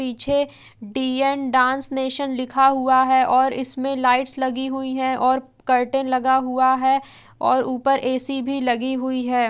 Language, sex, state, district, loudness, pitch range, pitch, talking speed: Hindi, female, Uttar Pradesh, Etah, -20 LUFS, 255-270 Hz, 260 Hz, 160 wpm